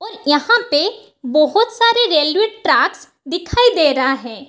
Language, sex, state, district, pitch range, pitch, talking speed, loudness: Hindi, female, Bihar, Kishanganj, 295-450 Hz, 350 Hz, 145 wpm, -15 LUFS